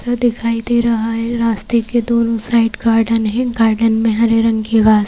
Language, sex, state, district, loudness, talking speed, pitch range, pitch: Hindi, female, Madhya Pradesh, Bhopal, -15 LUFS, 190 wpm, 225-235 Hz, 230 Hz